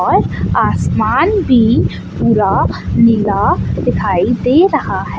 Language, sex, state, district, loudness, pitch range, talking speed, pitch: Hindi, female, Chandigarh, Chandigarh, -13 LUFS, 225-355 Hz, 105 wpm, 245 Hz